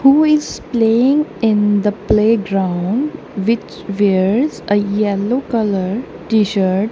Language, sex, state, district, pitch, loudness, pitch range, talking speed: English, female, Punjab, Kapurthala, 215 Hz, -16 LUFS, 200-240 Hz, 105 wpm